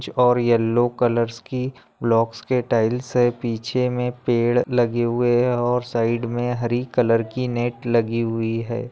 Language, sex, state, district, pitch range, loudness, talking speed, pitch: Hindi, male, Maharashtra, Nagpur, 115-125 Hz, -21 LUFS, 160 wpm, 120 Hz